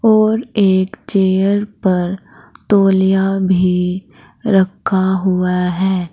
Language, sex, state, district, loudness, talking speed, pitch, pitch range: Hindi, female, Uttar Pradesh, Saharanpur, -15 LUFS, 90 wpm, 190 Hz, 185-200 Hz